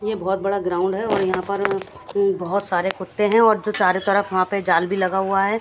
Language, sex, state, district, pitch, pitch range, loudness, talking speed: Hindi, female, Haryana, Jhajjar, 195 Hz, 185-200 Hz, -20 LUFS, 245 wpm